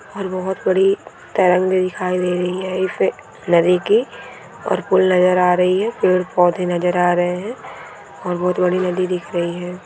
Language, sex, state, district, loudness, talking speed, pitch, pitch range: Hindi, female, Goa, North and South Goa, -18 LUFS, 170 wpm, 180 Hz, 180-185 Hz